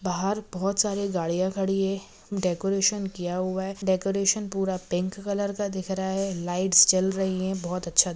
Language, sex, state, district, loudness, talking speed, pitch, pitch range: Hindi, female, Maharashtra, Sindhudurg, -26 LUFS, 200 wpm, 190 Hz, 185-195 Hz